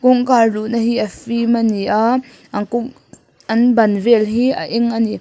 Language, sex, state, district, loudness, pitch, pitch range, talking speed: Mizo, female, Mizoram, Aizawl, -16 LUFS, 235 Hz, 220-240 Hz, 220 wpm